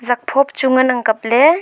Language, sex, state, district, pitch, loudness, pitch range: Wancho, female, Arunachal Pradesh, Longding, 255 Hz, -14 LUFS, 245-280 Hz